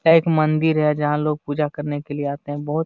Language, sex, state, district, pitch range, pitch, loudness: Hindi, male, Jharkhand, Jamtara, 145-155 Hz, 150 Hz, -21 LUFS